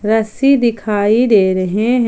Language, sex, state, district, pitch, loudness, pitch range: Hindi, female, Jharkhand, Palamu, 220 Hz, -14 LUFS, 210-235 Hz